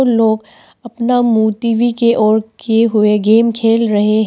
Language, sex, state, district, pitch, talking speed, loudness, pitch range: Hindi, female, Arunachal Pradesh, Papum Pare, 225 Hz, 170 wpm, -13 LUFS, 215-235 Hz